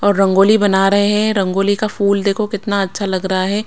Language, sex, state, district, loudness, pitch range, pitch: Hindi, female, Bihar, Patna, -15 LUFS, 195-210 Hz, 200 Hz